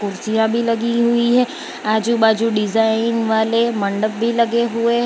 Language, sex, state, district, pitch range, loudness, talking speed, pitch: Hindi, female, Gujarat, Valsad, 220-235 Hz, -17 LUFS, 165 wpm, 230 Hz